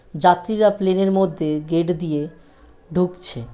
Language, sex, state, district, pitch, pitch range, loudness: Bengali, female, West Bengal, North 24 Parganas, 180 Hz, 155-190 Hz, -20 LUFS